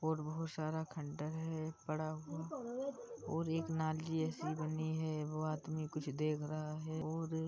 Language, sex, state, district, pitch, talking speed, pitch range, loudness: Hindi, female, Uttar Pradesh, Muzaffarnagar, 155 Hz, 155 wpm, 155-160 Hz, -41 LUFS